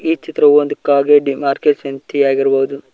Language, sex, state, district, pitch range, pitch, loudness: Kannada, male, Karnataka, Koppal, 140-145 Hz, 140 Hz, -14 LUFS